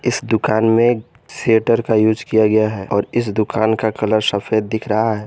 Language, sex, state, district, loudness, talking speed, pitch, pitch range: Hindi, male, Jharkhand, Garhwa, -17 LUFS, 205 wpm, 110 Hz, 110-115 Hz